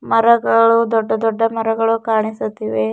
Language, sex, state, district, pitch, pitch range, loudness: Kannada, female, Karnataka, Bidar, 225 Hz, 220-230 Hz, -16 LUFS